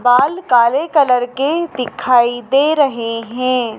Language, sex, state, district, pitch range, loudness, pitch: Hindi, female, Madhya Pradesh, Dhar, 240-280 Hz, -15 LUFS, 250 Hz